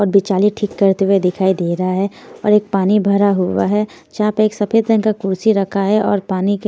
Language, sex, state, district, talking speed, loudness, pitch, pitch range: Hindi, female, Haryana, Jhajjar, 235 wpm, -16 LUFS, 200 Hz, 195-210 Hz